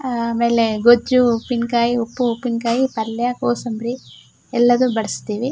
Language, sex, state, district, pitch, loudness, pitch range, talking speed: Kannada, female, Karnataka, Shimoga, 240 Hz, -18 LUFS, 230-245 Hz, 110 wpm